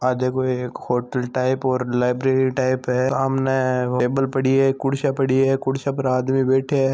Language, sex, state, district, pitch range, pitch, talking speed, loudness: Marwari, male, Rajasthan, Nagaur, 125-135 Hz, 130 Hz, 180 wpm, -21 LUFS